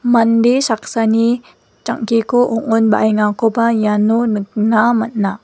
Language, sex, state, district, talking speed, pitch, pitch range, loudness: Garo, female, Meghalaya, West Garo Hills, 75 wpm, 225 Hz, 215-235 Hz, -15 LUFS